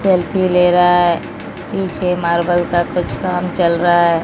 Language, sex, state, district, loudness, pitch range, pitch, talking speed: Hindi, female, Odisha, Malkangiri, -15 LUFS, 175-180 Hz, 175 Hz, 170 wpm